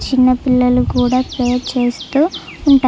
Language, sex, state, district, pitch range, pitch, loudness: Telugu, female, Andhra Pradesh, Chittoor, 250-265 Hz, 255 Hz, -15 LUFS